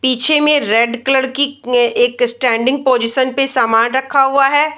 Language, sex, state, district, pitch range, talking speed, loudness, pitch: Hindi, female, Bihar, Samastipur, 240-275 Hz, 165 wpm, -13 LUFS, 260 Hz